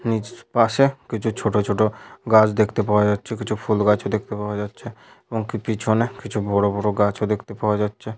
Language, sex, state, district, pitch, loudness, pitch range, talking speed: Bengali, male, West Bengal, Malda, 110 Hz, -21 LUFS, 105-115 Hz, 185 wpm